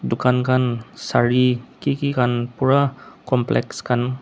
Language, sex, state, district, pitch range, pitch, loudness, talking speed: Nagamese, male, Nagaland, Dimapur, 120-130 Hz, 125 Hz, -20 LUFS, 115 wpm